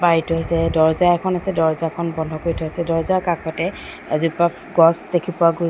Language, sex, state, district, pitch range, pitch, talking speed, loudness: Assamese, female, Assam, Sonitpur, 165-175 Hz, 165 Hz, 170 wpm, -19 LUFS